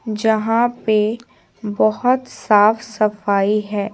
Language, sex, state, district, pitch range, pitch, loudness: Hindi, female, Bihar, Patna, 210-225 Hz, 215 Hz, -17 LUFS